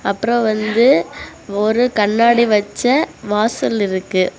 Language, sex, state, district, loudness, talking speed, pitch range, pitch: Tamil, female, Tamil Nadu, Kanyakumari, -16 LUFS, 95 wpm, 205-235 Hz, 215 Hz